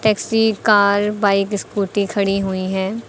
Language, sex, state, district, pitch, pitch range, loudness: Hindi, female, Uttar Pradesh, Lucknow, 200 Hz, 195-210 Hz, -18 LUFS